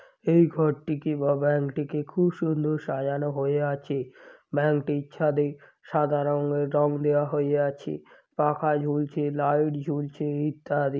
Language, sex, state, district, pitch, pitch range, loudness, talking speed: Bengali, male, West Bengal, Paschim Medinipur, 145 Hz, 145-150 Hz, -26 LUFS, 130 wpm